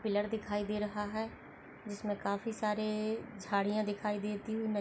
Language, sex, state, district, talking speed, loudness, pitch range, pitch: Hindi, female, Goa, North and South Goa, 175 wpm, -36 LUFS, 205-220 Hz, 210 Hz